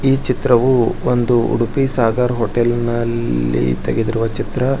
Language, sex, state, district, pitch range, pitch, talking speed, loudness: Kannada, male, Karnataka, Bijapur, 115-125 Hz, 120 Hz, 110 wpm, -17 LUFS